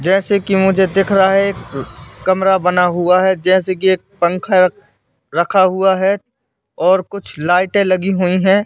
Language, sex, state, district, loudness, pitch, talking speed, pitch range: Hindi, male, Madhya Pradesh, Katni, -14 LUFS, 190 Hz, 165 wpm, 180-195 Hz